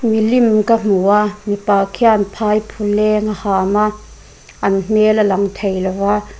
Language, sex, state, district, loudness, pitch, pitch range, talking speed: Mizo, female, Mizoram, Aizawl, -15 LUFS, 210 Hz, 200-215 Hz, 160 wpm